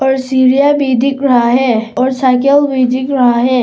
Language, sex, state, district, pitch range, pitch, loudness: Hindi, female, Arunachal Pradesh, Papum Pare, 250-270 Hz, 260 Hz, -11 LUFS